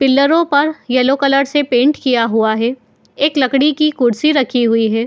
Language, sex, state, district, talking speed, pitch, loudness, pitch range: Hindi, female, Uttar Pradesh, Muzaffarnagar, 190 wpm, 270 Hz, -14 LUFS, 240-290 Hz